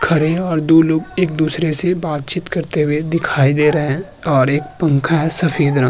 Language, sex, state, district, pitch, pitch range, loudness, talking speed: Hindi, male, Uttar Pradesh, Hamirpur, 160 Hz, 150-170 Hz, -16 LUFS, 225 wpm